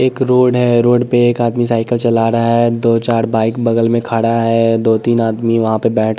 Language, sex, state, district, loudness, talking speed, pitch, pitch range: Hindi, male, Bihar, West Champaran, -13 LUFS, 225 wpm, 115 Hz, 115-120 Hz